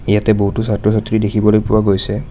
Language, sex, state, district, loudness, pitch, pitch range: Assamese, male, Assam, Kamrup Metropolitan, -15 LUFS, 105 Hz, 105-110 Hz